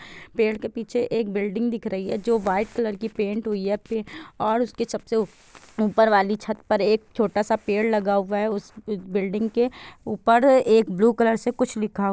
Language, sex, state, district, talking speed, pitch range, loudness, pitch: Hindi, female, Chhattisgarh, Bilaspur, 195 wpm, 205-230 Hz, -23 LUFS, 220 Hz